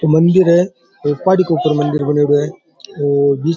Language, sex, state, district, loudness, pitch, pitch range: Rajasthani, male, Rajasthan, Churu, -14 LUFS, 150 Hz, 145-170 Hz